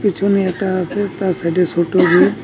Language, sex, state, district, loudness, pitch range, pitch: Bengali, male, West Bengal, Cooch Behar, -16 LUFS, 180-200 Hz, 185 Hz